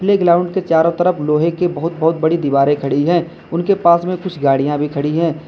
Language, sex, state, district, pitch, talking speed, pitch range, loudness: Hindi, male, Uttar Pradesh, Lalitpur, 165 Hz, 220 wpm, 150-175 Hz, -16 LUFS